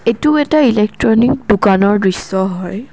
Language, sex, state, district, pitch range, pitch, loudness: Assamese, female, Assam, Kamrup Metropolitan, 190-250 Hz, 215 Hz, -13 LUFS